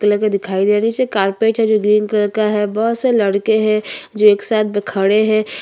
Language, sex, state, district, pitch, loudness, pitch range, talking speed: Hindi, female, Chhattisgarh, Bastar, 210 Hz, -15 LUFS, 205-220 Hz, 290 wpm